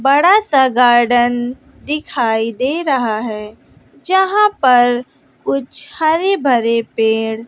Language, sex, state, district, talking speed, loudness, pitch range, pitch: Hindi, female, Bihar, West Champaran, 105 wpm, -14 LUFS, 230-300 Hz, 250 Hz